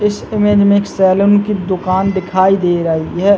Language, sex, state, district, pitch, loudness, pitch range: Hindi, male, Chhattisgarh, Bilaspur, 190 Hz, -13 LUFS, 185-205 Hz